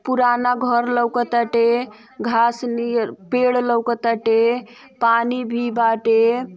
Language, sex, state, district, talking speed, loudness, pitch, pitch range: Bhojpuri, female, Uttar Pradesh, Ghazipur, 90 wpm, -19 LUFS, 235 Hz, 230-245 Hz